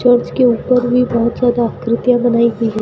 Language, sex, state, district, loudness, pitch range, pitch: Hindi, female, Rajasthan, Bikaner, -14 LUFS, 235-245 Hz, 240 Hz